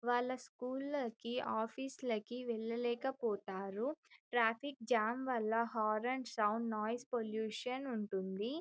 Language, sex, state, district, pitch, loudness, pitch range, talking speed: Telugu, female, Telangana, Karimnagar, 235 Hz, -39 LUFS, 220-255 Hz, 90 wpm